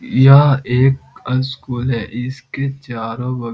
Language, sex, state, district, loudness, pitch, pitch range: Hindi, male, Bihar, Jamui, -16 LUFS, 130 Hz, 120-135 Hz